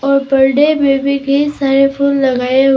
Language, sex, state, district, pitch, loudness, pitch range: Hindi, female, Arunachal Pradesh, Papum Pare, 275 Hz, -12 LUFS, 270-280 Hz